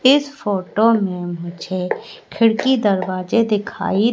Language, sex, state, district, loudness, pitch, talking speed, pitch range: Hindi, female, Madhya Pradesh, Katni, -19 LUFS, 210 Hz, 100 wpm, 185-255 Hz